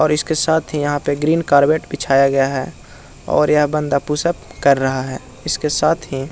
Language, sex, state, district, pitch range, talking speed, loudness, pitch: Hindi, male, Bihar, Jahanabad, 135-155 Hz, 220 wpm, -17 LUFS, 145 Hz